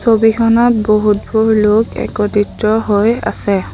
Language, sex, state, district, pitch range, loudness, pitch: Assamese, female, Assam, Sonitpur, 210-225 Hz, -13 LUFS, 215 Hz